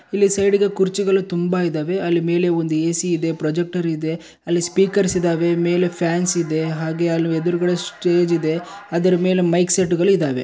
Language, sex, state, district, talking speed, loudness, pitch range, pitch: Kannada, male, Karnataka, Bellary, 160 wpm, -19 LUFS, 165-185 Hz, 175 Hz